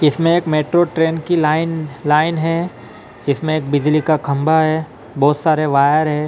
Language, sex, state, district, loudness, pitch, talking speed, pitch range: Hindi, male, Maharashtra, Mumbai Suburban, -16 LUFS, 155 Hz, 180 wpm, 145-160 Hz